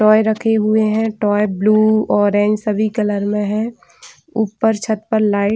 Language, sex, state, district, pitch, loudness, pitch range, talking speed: Hindi, female, Chhattisgarh, Bilaspur, 215 Hz, -16 LUFS, 210-220 Hz, 195 wpm